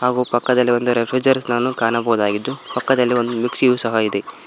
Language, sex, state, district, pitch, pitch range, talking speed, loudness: Kannada, male, Karnataka, Koppal, 120 Hz, 115-125 Hz, 145 wpm, -18 LUFS